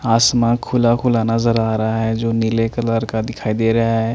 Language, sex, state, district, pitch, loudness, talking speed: Hindi, male, Chandigarh, Chandigarh, 115 Hz, -17 LUFS, 215 wpm